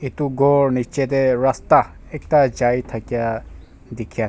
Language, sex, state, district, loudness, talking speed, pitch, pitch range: Nagamese, male, Nagaland, Kohima, -19 LUFS, 140 wpm, 125 Hz, 115-135 Hz